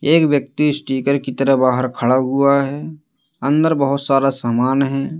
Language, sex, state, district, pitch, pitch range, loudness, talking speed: Hindi, male, Madhya Pradesh, Katni, 140 Hz, 130-145 Hz, -17 LUFS, 160 wpm